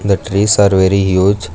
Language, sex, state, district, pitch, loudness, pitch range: English, male, Karnataka, Bangalore, 100 Hz, -12 LUFS, 95-100 Hz